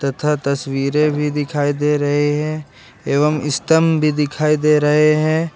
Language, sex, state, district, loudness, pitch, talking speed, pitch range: Hindi, male, Jharkhand, Ranchi, -17 LUFS, 150 Hz, 150 wpm, 145-150 Hz